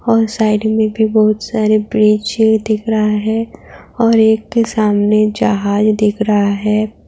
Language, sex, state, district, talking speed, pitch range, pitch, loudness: Hindi, female, Uttar Pradesh, Budaun, 155 wpm, 210-220 Hz, 215 Hz, -14 LUFS